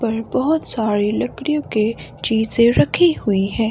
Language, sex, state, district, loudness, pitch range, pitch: Hindi, female, Himachal Pradesh, Shimla, -17 LUFS, 215-270 Hz, 225 Hz